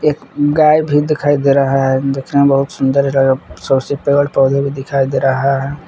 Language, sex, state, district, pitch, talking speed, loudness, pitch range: Hindi, male, Jharkhand, Palamu, 140 Hz, 195 wpm, -14 LUFS, 135-145 Hz